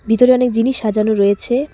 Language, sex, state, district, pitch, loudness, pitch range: Bengali, female, West Bengal, Cooch Behar, 230 Hz, -15 LUFS, 215-250 Hz